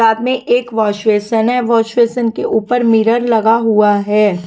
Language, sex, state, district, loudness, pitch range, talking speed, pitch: Hindi, female, Punjab, Kapurthala, -13 LUFS, 215-235 Hz, 160 wpm, 225 Hz